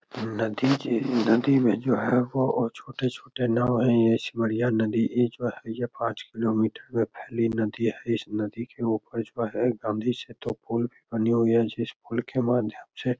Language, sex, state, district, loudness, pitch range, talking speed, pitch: Hindi, male, Bihar, Begusarai, -26 LUFS, 115-120 Hz, 195 wpm, 115 Hz